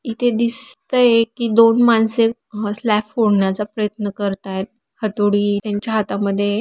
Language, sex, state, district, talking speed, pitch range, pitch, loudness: Marathi, female, Maharashtra, Aurangabad, 125 wpm, 205-230 Hz, 215 Hz, -17 LUFS